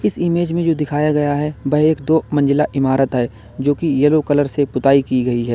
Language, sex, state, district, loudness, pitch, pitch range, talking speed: Hindi, male, Uttar Pradesh, Lalitpur, -17 LUFS, 145 Hz, 135-150 Hz, 225 wpm